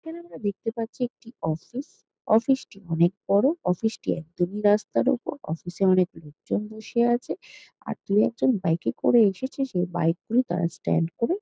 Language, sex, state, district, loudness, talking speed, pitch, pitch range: Bengali, female, West Bengal, Jalpaiguri, -25 LUFS, 180 wpm, 205 Hz, 175-240 Hz